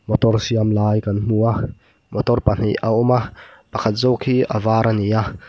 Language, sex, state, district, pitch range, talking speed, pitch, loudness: Mizo, male, Mizoram, Aizawl, 105-120 Hz, 175 wpm, 110 Hz, -18 LUFS